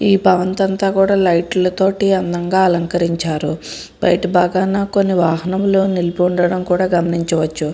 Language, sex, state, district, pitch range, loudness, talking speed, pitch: Telugu, female, Andhra Pradesh, Srikakulam, 170-195 Hz, -16 LUFS, 110 wpm, 180 Hz